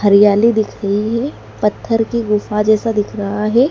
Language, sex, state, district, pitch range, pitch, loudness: Hindi, female, Madhya Pradesh, Dhar, 205-225 Hz, 210 Hz, -16 LUFS